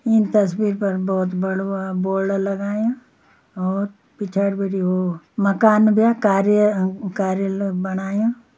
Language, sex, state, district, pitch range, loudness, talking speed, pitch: Garhwali, female, Uttarakhand, Uttarkashi, 190-210 Hz, -20 LUFS, 110 wpm, 195 Hz